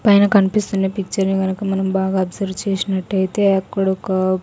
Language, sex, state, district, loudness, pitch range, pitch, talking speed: Telugu, female, Andhra Pradesh, Sri Satya Sai, -18 LUFS, 190-200 Hz, 195 Hz, 135 wpm